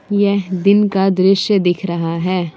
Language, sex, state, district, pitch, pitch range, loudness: Hindi, female, Jharkhand, Palamu, 190 Hz, 180-200 Hz, -15 LUFS